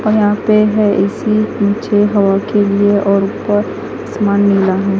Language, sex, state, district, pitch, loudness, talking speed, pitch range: Hindi, female, Punjab, Fazilka, 205 Hz, -13 LUFS, 170 wpm, 200-210 Hz